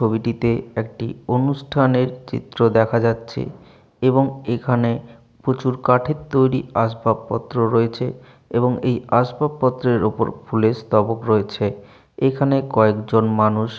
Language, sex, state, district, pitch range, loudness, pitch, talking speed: Bengali, male, West Bengal, Jalpaiguri, 115-130 Hz, -20 LUFS, 115 Hz, 110 wpm